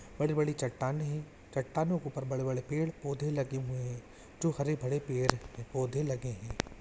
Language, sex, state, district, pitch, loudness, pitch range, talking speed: Hindi, male, Andhra Pradesh, Chittoor, 135 Hz, -35 LUFS, 130-150 Hz, 140 wpm